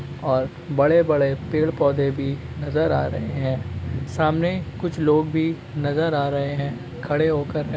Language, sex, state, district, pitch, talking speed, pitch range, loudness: Magahi, male, Bihar, Gaya, 145 Hz, 145 wpm, 130-155 Hz, -22 LUFS